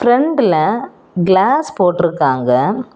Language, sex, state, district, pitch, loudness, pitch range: Tamil, female, Tamil Nadu, Kanyakumari, 190 Hz, -14 LUFS, 170-240 Hz